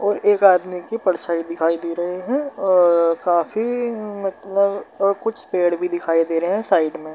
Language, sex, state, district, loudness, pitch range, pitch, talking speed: Hindi, male, Bihar, Darbhanga, -20 LUFS, 170-205 Hz, 180 Hz, 175 wpm